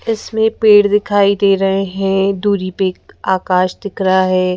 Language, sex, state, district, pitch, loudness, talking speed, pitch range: Hindi, female, Madhya Pradesh, Bhopal, 195 Hz, -14 LUFS, 155 wpm, 190-205 Hz